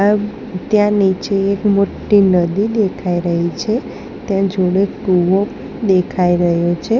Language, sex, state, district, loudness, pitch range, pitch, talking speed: Gujarati, female, Gujarat, Gandhinagar, -16 LUFS, 180-205 Hz, 195 Hz, 130 wpm